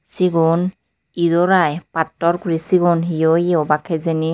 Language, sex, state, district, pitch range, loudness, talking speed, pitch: Chakma, female, Tripura, Unakoti, 160-175 Hz, -17 LUFS, 140 wpm, 165 Hz